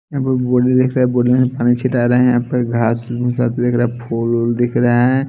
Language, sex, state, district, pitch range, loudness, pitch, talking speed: Hindi, male, Bihar, Kaimur, 120-125 Hz, -16 LUFS, 120 Hz, 240 wpm